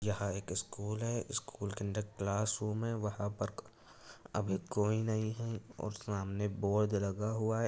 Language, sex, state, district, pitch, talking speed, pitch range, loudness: Hindi, male, Uttar Pradesh, Etah, 105 Hz, 170 wpm, 100-110 Hz, -37 LUFS